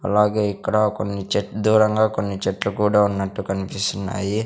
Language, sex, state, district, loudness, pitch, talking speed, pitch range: Telugu, male, Andhra Pradesh, Sri Satya Sai, -21 LUFS, 105 Hz, 135 wpm, 100-105 Hz